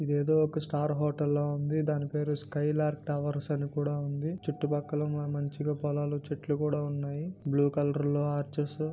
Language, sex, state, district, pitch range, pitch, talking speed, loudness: Telugu, male, Andhra Pradesh, Guntur, 145-150 Hz, 145 Hz, 170 wpm, -31 LUFS